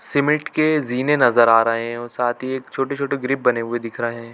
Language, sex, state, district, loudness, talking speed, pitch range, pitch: Hindi, male, Chhattisgarh, Bilaspur, -19 LUFS, 260 wpm, 120-140 Hz, 125 Hz